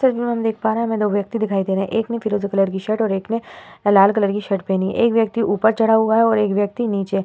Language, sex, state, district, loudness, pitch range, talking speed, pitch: Hindi, female, Uttar Pradesh, Hamirpur, -19 LUFS, 200-225 Hz, 330 wpm, 215 Hz